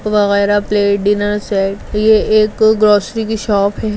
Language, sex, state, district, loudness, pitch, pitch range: Hindi, female, Bihar, Gaya, -13 LUFS, 210 Hz, 205-215 Hz